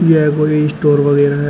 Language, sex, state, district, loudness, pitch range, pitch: Hindi, male, Uttar Pradesh, Shamli, -13 LUFS, 145-150 Hz, 150 Hz